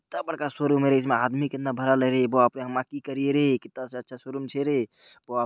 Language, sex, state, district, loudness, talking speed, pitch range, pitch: Maithili, male, Bihar, Purnia, -25 LUFS, 285 wpm, 130-140 Hz, 135 Hz